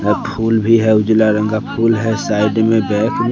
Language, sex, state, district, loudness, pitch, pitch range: Hindi, male, Bihar, West Champaran, -14 LUFS, 110 Hz, 105-115 Hz